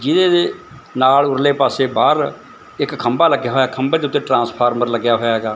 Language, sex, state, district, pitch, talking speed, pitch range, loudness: Punjabi, male, Punjab, Fazilka, 130 Hz, 185 wpm, 120-140 Hz, -16 LUFS